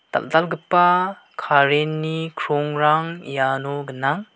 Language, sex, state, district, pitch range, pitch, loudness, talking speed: Garo, male, Meghalaya, West Garo Hills, 140-165 Hz, 155 Hz, -20 LUFS, 70 wpm